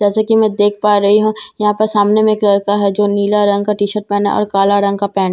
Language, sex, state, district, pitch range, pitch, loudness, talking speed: Hindi, female, Bihar, Katihar, 200-210 Hz, 205 Hz, -13 LUFS, 290 wpm